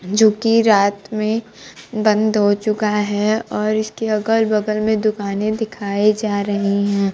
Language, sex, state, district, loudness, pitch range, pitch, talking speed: Hindi, female, Bihar, Kaimur, -18 LUFS, 205-220 Hz, 215 Hz, 150 wpm